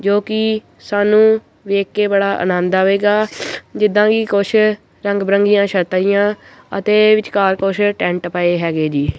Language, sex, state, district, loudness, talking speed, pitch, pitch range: Punjabi, male, Punjab, Kapurthala, -15 LUFS, 145 wpm, 200 Hz, 190-210 Hz